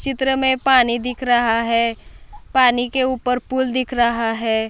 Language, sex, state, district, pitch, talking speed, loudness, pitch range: Hindi, female, Maharashtra, Solapur, 250 Hz, 165 wpm, -18 LUFS, 235-260 Hz